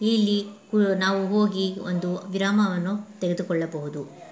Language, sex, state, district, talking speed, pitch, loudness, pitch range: Kannada, female, Karnataka, Mysore, 95 wpm, 195 Hz, -25 LUFS, 180-205 Hz